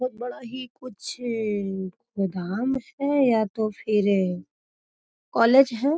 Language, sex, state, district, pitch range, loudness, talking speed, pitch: Magahi, female, Bihar, Gaya, 200-255 Hz, -24 LUFS, 110 wpm, 230 Hz